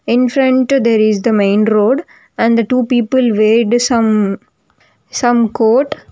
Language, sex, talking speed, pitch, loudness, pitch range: English, female, 155 wpm, 235 Hz, -13 LUFS, 220-250 Hz